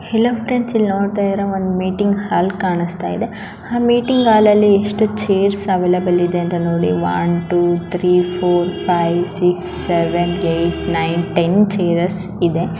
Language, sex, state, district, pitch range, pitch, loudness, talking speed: Kannada, female, Karnataka, Dharwad, 175-205 Hz, 180 Hz, -16 LUFS, 130 wpm